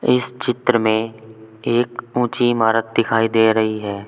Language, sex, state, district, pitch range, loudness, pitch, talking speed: Hindi, male, Uttar Pradesh, Saharanpur, 110-120 Hz, -18 LUFS, 115 Hz, 145 wpm